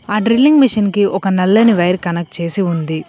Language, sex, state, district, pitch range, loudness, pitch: Telugu, female, Telangana, Komaram Bheem, 170-215 Hz, -13 LUFS, 195 Hz